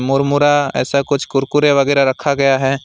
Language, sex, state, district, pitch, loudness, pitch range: Hindi, male, West Bengal, Alipurduar, 140 Hz, -15 LUFS, 135-145 Hz